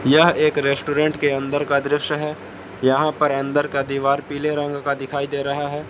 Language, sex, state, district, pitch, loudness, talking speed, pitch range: Hindi, male, Jharkhand, Palamu, 145 Hz, -20 LUFS, 205 wpm, 140-150 Hz